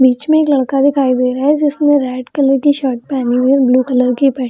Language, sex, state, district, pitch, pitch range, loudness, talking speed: Hindi, female, Bihar, Gaya, 270 Hz, 255-285 Hz, -13 LUFS, 295 wpm